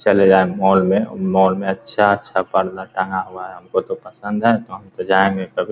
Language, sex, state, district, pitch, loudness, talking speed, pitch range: Hindi, male, Bihar, Muzaffarpur, 95 Hz, -18 LUFS, 220 wpm, 95-100 Hz